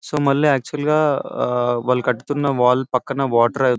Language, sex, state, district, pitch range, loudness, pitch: Telugu, male, Telangana, Karimnagar, 125-145 Hz, -19 LUFS, 135 Hz